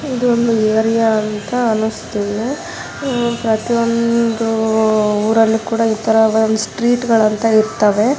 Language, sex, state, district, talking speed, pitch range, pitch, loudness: Kannada, female, Karnataka, Raichur, 95 wpm, 220-235 Hz, 225 Hz, -15 LUFS